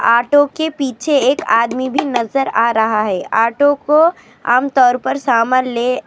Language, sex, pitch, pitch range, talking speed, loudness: Urdu, female, 255 Hz, 235-285 Hz, 150 wpm, -15 LUFS